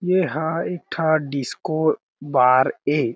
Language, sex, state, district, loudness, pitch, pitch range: Chhattisgarhi, male, Chhattisgarh, Jashpur, -21 LUFS, 155 Hz, 140-160 Hz